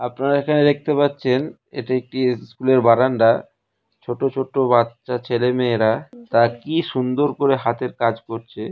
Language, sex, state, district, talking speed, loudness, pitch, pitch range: Bengali, male, West Bengal, North 24 Parganas, 140 wpm, -19 LUFS, 130 Hz, 120-140 Hz